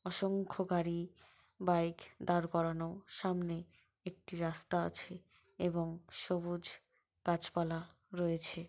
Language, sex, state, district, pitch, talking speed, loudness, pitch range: Bengali, female, West Bengal, Paschim Medinipur, 175 Hz, 95 wpm, -38 LUFS, 170-180 Hz